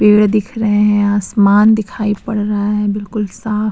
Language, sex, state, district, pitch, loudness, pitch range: Hindi, female, Goa, North and South Goa, 210 Hz, -14 LUFS, 205-215 Hz